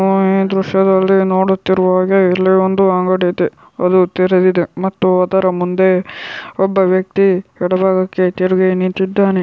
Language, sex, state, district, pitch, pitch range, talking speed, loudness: Kannada, female, Karnataka, Shimoga, 185 Hz, 185-190 Hz, 125 wpm, -14 LUFS